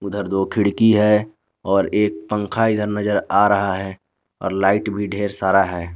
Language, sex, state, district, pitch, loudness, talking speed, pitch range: Hindi, male, Jharkhand, Garhwa, 100 Hz, -19 LUFS, 180 wpm, 95-105 Hz